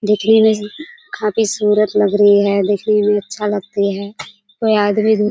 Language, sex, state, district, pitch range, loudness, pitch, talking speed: Hindi, female, Bihar, Kishanganj, 205-215 Hz, -15 LUFS, 210 Hz, 180 wpm